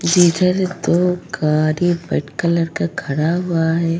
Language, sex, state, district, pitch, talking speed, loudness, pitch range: Hindi, female, Goa, North and South Goa, 170 Hz, 135 wpm, -18 LUFS, 160-175 Hz